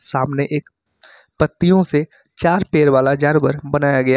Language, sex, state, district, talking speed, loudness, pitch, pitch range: Hindi, male, Uttar Pradesh, Lucknow, 145 wpm, -17 LUFS, 145 Hz, 140-155 Hz